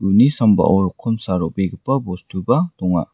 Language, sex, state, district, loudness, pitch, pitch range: Garo, male, Meghalaya, West Garo Hills, -18 LUFS, 95 Hz, 90-120 Hz